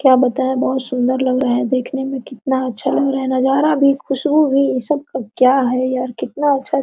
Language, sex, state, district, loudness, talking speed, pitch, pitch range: Hindi, female, Jharkhand, Sahebganj, -17 LUFS, 235 wpm, 265 Hz, 255-275 Hz